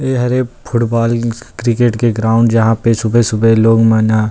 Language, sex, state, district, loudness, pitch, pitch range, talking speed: Chhattisgarhi, male, Chhattisgarh, Rajnandgaon, -13 LUFS, 115 Hz, 110-120 Hz, 180 wpm